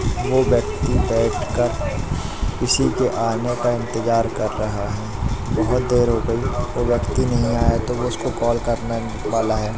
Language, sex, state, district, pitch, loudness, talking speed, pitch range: Hindi, male, Madhya Pradesh, Katni, 115 Hz, -21 LUFS, 160 wpm, 110-120 Hz